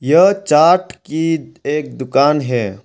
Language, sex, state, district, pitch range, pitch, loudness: Hindi, male, Arunachal Pradesh, Longding, 135-165 Hz, 150 Hz, -15 LUFS